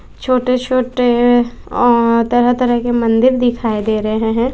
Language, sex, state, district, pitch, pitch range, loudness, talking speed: Hindi, female, Bihar, West Champaran, 240 Hz, 230-250 Hz, -14 LUFS, 145 wpm